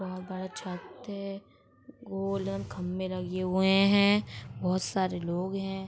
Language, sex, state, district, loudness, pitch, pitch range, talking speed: Hindi, female, Uttar Pradesh, Etah, -30 LUFS, 190 Hz, 185-195 Hz, 120 wpm